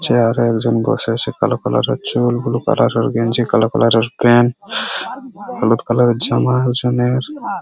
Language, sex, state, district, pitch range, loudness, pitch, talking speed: Bengali, male, West Bengal, Purulia, 115-130 Hz, -16 LUFS, 120 Hz, 175 wpm